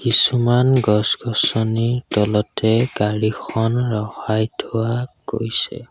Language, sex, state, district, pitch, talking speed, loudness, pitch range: Assamese, male, Assam, Sonitpur, 115 Hz, 70 wpm, -18 LUFS, 110-120 Hz